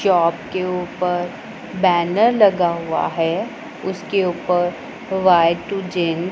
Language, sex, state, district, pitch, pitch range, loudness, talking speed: Hindi, female, Punjab, Pathankot, 180 Hz, 170-190 Hz, -19 LUFS, 115 wpm